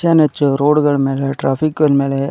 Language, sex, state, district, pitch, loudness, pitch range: Kannada, male, Karnataka, Dharwad, 140 Hz, -15 LUFS, 135-150 Hz